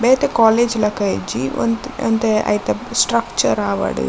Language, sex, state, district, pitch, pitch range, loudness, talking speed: Tulu, female, Karnataka, Dakshina Kannada, 225 Hz, 210-240 Hz, -17 LUFS, 145 wpm